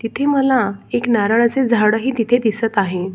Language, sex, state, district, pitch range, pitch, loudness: Marathi, male, Maharashtra, Solapur, 210-245 Hz, 230 Hz, -17 LUFS